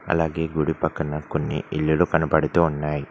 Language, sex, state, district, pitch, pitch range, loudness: Telugu, male, Telangana, Mahabubabad, 80 Hz, 75-80 Hz, -23 LUFS